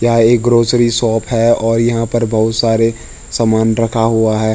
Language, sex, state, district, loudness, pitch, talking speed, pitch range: Hindi, male, Uttarakhand, Tehri Garhwal, -13 LUFS, 115 Hz, 185 wpm, 110-115 Hz